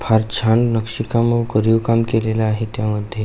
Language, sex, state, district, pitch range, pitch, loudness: Marathi, male, Maharashtra, Aurangabad, 110-115 Hz, 110 Hz, -17 LUFS